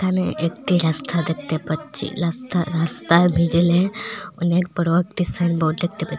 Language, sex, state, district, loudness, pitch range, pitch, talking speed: Bengali, female, Assam, Hailakandi, -20 LUFS, 165-180 Hz, 170 Hz, 105 wpm